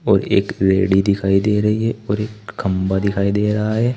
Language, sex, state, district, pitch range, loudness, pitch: Hindi, male, Uttar Pradesh, Saharanpur, 95-105 Hz, -18 LUFS, 100 Hz